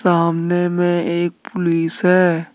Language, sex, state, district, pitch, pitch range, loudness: Hindi, male, Jharkhand, Deoghar, 175 Hz, 170-180 Hz, -17 LUFS